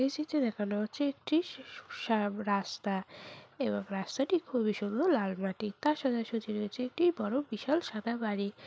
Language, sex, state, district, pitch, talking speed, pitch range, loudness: Bengali, female, West Bengal, Purulia, 225 Hz, 145 wpm, 205-285 Hz, -33 LUFS